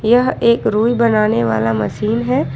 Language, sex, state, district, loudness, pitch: Hindi, female, Jharkhand, Ranchi, -15 LUFS, 220 Hz